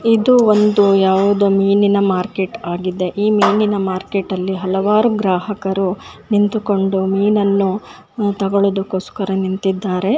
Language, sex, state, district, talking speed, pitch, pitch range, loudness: Kannada, female, Karnataka, Bijapur, 100 wpm, 200 Hz, 190-210 Hz, -16 LUFS